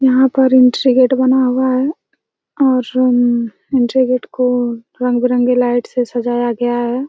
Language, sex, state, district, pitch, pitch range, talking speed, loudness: Hindi, female, Chhattisgarh, Raigarh, 250 Hz, 245-260 Hz, 160 wpm, -14 LUFS